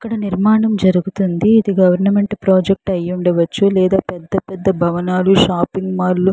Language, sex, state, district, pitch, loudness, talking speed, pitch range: Telugu, female, Andhra Pradesh, Chittoor, 190 Hz, -15 LUFS, 140 wpm, 180-200 Hz